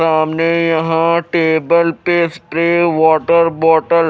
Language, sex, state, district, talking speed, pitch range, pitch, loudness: Hindi, male, Odisha, Malkangiri, 115 wpm, 160-170 Hz, 165 Hz, -13 LUFS